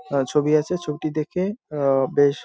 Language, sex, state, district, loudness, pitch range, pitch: Bengali, male, West Bengal, Jalpaiguri, -22 LUFS, 140-155 Hz, 150 Hz